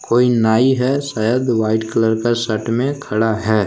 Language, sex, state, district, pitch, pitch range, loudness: Hindi, male, Jharkhand, Palamu, 115 Hz, 110-125 Hz, -17 LUFS